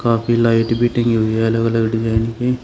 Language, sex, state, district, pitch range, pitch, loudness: Hindi, male, Uttar Pradesh, Shamli, 115-120 Hz, 115 Hz, -17 LUFS